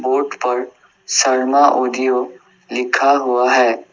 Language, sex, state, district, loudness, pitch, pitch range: Hindi, male, Assam, Sonitpur, -16 LUFS, 125 Hz, 125-130 Hz